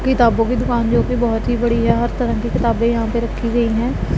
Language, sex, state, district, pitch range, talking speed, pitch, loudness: Hindi, female, Punjab, Pathankot, 230-240 Hz, 260 wpm, 235 Hz, -17 LUFS